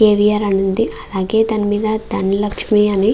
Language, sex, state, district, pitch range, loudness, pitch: Telugu, female, Andhra Pradesh, Guntur, 200-215 Hz, -16 LUFS, 210 Hz